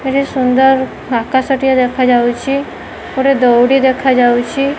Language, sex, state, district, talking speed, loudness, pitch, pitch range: Odia, female, Odisha, Khordha, 115 wpm, -12 LUFS, 260 Hz, 245-270 Hz